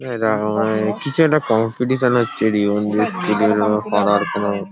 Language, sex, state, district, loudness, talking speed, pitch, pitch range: Bengali, male, West Bengal, Paschim Medinipur, -18 LUFS, 165 wpm, 110 Hz, 105-120 Hz